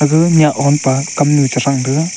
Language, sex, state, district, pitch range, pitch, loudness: Wancho, male, Arunachal Pradesh, Longding, 135-155 Hz, 145 Hz, -13 LUFS